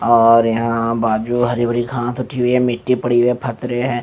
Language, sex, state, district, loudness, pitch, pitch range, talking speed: Hindi, male, Punjab, Fazilka, -17 LUFS, 120 Hz, 115-125 Hz, 225 wpm